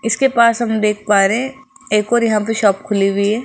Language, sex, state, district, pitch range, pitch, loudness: Hindi, female, Rajasthan, Jaipur, 210-235 Hz, 220 Hz, -15 LUFS